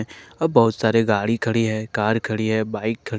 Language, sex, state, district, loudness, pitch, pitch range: Hindi, male, Jharkhand, Ranchi, -21 LUFS, 110 Hz, 110-115 Hz